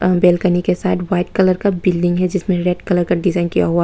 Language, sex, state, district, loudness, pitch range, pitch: Hindi, female, Tripura, West Tripura, -16 LUFS, 175-185 Hz, 180 Hz